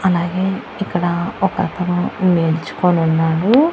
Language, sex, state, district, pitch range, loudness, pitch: Telugu, female, Andhra Pradesh, Annamaya, 170-195 Hz, -17 LUFS, 180 Hz